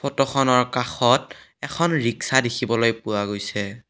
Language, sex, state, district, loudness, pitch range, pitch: Assamese, male, Assam, Kamrup Metropolitan, -21 LUFS, 115-135 Hz, 125 Hz